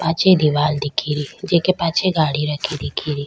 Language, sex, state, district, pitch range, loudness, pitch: Rajasthani, female, Rajasthan, Nagaur, 150-175 Hz, -18 LUFS, 155 Hz